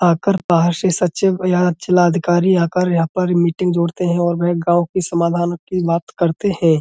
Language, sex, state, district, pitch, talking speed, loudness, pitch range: Hindi, male, Uttar Pradesh, Budaun, 175 Hz, 185 wpm, -17 LUFS, 170-180 Hz